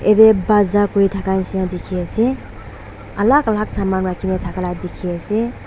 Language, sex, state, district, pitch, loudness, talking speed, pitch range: Nagamese, female, Nagaland, Dimapur, 190 Hz, -17 LUFS, 170 wpm, 180-210 Hz